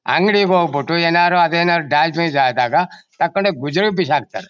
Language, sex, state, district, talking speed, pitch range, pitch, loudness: Kannada, male, Karnataka, Mysore, 120 wpm, 165-185 Hz, 170 Hz, -16 LUFS